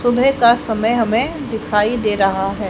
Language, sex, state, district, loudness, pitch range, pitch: Hindi, female, Haryana, Jhajjar, -16 LUFS, 210-240 Hz, 225 Hz